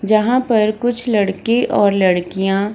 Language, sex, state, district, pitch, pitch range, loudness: Hindi, female, Bihar, Samastipur, 210 Hz, 195-230 Hz, -16 LUFS